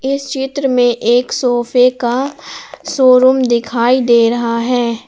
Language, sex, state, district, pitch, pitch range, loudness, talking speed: Hindi, female, Jharkhand, Palamu, 250 Hz, 240-265 Hz, -13 LUFS, 140 wpm